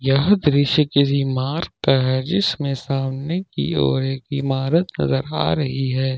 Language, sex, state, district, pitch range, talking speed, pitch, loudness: Hindi, male, Jharkhand, Ranchi, 130-150 Hz, 155 wpm, 135 Hz, -20 LUFS